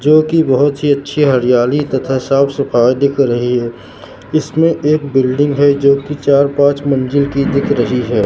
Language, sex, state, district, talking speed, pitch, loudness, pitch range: Hindi, male, Madhya Pradesh, Katni, 175 wpm, 140 Hz, -13 LUFS, 130-145 Hz